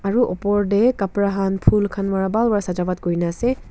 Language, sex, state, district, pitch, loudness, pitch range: Nagamese, female, Nagaland, Kohima, 200 Hz, -20 LUFS, 190-210 Hz